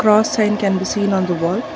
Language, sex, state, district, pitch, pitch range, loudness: English, female, Karnataka, Bangalore, 205 Hz, 190-215 Hz, -17 LUFS